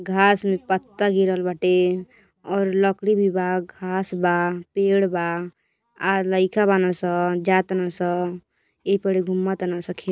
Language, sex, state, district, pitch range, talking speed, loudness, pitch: Bhojpuri, female, Uttar Pradesh, Gorakhpur, 180-195 Hz, 135 wpm, -22 LUFS, 185 Hz